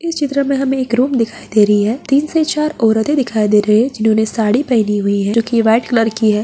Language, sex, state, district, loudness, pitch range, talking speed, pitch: Hindi, female, Bihar, Jamui, -14 LUFS, 215-275 Hz, 270 wpm, 230 Hz